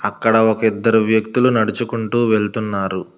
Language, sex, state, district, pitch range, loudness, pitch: Telugu, male, Telangana, Hyderabad, 105-115 Hz, -17 LUFS, 110 Hz